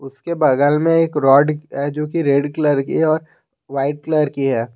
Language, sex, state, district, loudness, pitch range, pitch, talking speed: Hindi, male, Jharkhand, Garhwa, -17 LUFS, 140-155 Hz, 145 Hz, 200 wpm